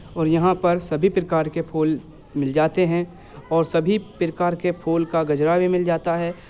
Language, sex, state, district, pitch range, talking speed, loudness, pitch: Hindi, male, Uttar Pradesh, Muzaffarnagar, 160-175 Hz, 195 wpm, -21 LUFS, 165 Hz